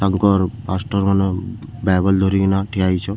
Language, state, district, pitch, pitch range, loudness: Sambalpuri, Odisha, Sambalpur, 95 Hz, 95-100 Hz, -18 LUFS